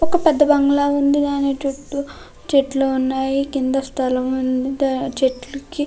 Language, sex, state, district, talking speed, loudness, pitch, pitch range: Telugu, female, Andhra Pradesh, Krishna, 125 wpm, -19 LUFS, 275 Hz, 265-285 Hz